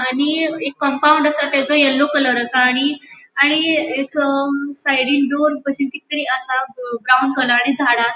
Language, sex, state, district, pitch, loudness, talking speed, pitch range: Konkani, female, Goa, North and South Goa, 280 Hz, -16 LUFS, 130 wpm, 260-290 Hz